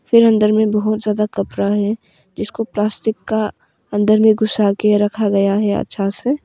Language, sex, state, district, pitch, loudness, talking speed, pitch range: Hindi, female, Arunachal Pradesh, Longding, 210 Hz, -17 LUFS, 175 wpm, 205-220 Hz